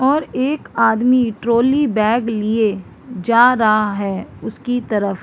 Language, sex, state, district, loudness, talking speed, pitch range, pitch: Hindi, female, Chhattisgarh, Bilaspur, -17 LUFS, 135 wpm, 215-250 Hz, 230 Hz